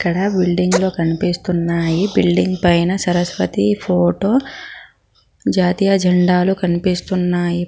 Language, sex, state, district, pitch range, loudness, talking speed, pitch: Telugu, female, Telangana, Mahabubabad, 175-190 Hz, -16 LUFS, 85 wpm, 180 Hz